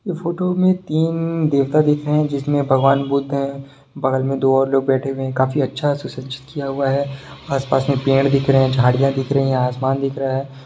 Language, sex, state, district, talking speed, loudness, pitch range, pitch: Hindi, male, Bihar, Sitamarhi, 230 wpm, -18 LUFS, 135-145 Hz, 135 Hz